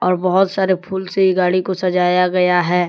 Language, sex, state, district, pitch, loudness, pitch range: Hindi, male, Jharkhand, Deoghar, 185 Hz, -16 LUFS, 180-190 Hz